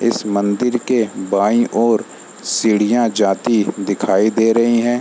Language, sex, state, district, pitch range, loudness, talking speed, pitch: Hindi, male, Bihar, Sitamarhi, 105-120 Hz, -16 LUFS, 145 wpm, 115 Hz